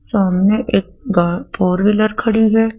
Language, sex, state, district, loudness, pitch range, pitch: Hindi, female, Madhya Pradesh, Dhar, -16 LUFS, 185-225 Hz, 210 Hz